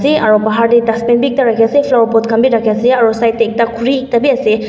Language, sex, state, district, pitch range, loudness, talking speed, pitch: Nagamese, female, Nagaland, Dimapur, 225-255 Hz, -12 LUFS, 295 wpm, 230 Hz